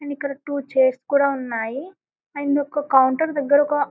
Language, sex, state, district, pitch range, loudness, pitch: Telugu, female, Telangana, Karimnagar, 265-290 Hz, -21 LUFS, 285 Hz